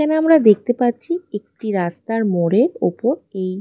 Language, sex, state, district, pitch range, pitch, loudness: Bengali, female, West Bengal, Dakshin Dinajpur, 195-290 Hz, 225 Hz, -18 LUFS